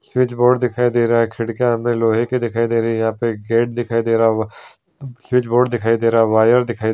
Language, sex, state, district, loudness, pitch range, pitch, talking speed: Hindi, male, Bihar, Supaul, -17 LUFS, 115-120 Hz, 115 Hz, 225 wpm